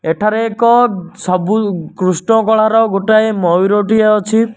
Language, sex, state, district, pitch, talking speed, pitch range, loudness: Odia, male, Odisha, Nuapada, 215 Hz, 120 wpm, 185-220 Hz, -13 LUFS